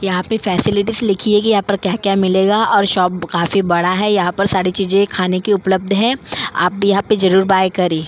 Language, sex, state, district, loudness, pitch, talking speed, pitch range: Hindi, female, Delhi, New Delhi, -15 LUFS, 195 Hz, 215 wpm, 185-205 Hz